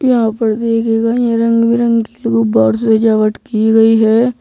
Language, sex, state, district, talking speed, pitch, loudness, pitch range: Hindi, female, Uttar Pradesh, Saharanpur, 150 wpm, 225 Hz, -13 LUFS, 220-230 Hz